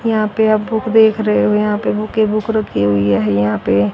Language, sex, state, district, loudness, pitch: Hindi, female, Haryana, Rohtak, -15 LUFS, 215 Hz